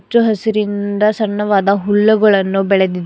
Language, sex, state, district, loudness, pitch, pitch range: Kannada, female, Karnataka, Bidar, -14 LUFS, 205 Hz, 195-215 Hz